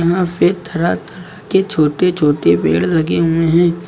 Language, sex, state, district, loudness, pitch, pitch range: Hindi, male, Uttar Pradesh, Lucknow, -15 LUFS, 170 Hz, 150-180 Hz